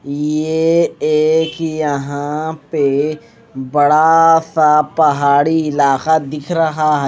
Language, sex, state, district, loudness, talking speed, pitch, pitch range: Hindi, male, Odisha, Malkangiri, -14 LUFS, 95 wpm, 155 Hz, 145-160 Hz